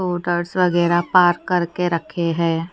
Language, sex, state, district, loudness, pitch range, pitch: Hindi, female, Chandigarh, Chandigarh, -19 LUFS, 170-180 Hz, 175 Hz